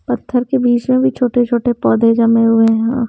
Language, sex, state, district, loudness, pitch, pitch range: Hindi, female, Bihar, Kaimur, -14 LUFS, 240 Hz, 230-250 Hz